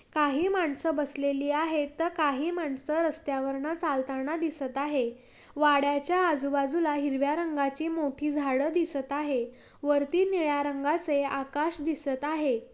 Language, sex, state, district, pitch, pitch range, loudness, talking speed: Marathi, female, Maharashtra, Pune, 290 Hz, 280-320 Hz, -29 LUFS, 120 wpm